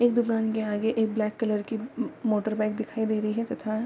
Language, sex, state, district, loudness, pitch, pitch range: Hindi, female, Bihar, Darbhanga, -28 LUFS, 220 Hz, 215-225 Hz